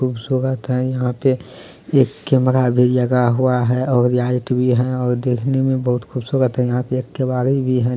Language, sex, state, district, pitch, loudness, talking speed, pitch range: Hindi, male, Bihar, Kishanganj, 125 Hz, -18 LUFS, 195 wpm, 125-130 Hz